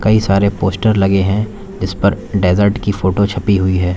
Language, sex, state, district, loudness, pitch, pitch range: Hindi, male, Uttar Pradesh, Lalitpur, -15 LUFS, 100 Hz, 95-105 Hz